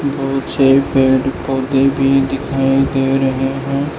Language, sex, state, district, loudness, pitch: Hindi, male, Arunachal Pradesh, Lower Dibang Valley, -15 LUFS, 135 Hz